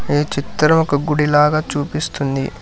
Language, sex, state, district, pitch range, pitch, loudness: Telugu, male, Telangana, Hyderabad, 145-155 Hz, 150 Hz, -17 LUFS